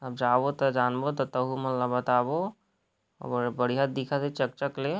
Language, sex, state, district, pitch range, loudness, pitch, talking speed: Chhattisgarhi, male, Chhattisgarh, Rajnandgaon, 125-140 Hz, -28 LUFS, 130 Hz, 130 wpm